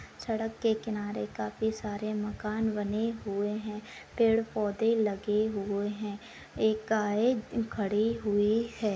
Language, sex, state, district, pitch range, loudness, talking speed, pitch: Hindi, female, Uttarakhand, Tehri Garhwal, 205-225 Hz, -31 LUFS, 115 wpm, 215 Hz